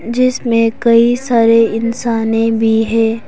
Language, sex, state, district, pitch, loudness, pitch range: Hindi, female, Arunachal Pradesh, Papum Pare, 230 Hz, -13 LUFS, 225-235 Hz